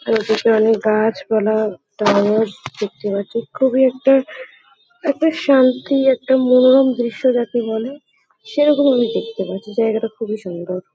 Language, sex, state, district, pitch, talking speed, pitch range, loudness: Bengali, female, West Bengal, Kolkata, 230 Hz, 125 wpm, 215-265 Hz, -17 LUFS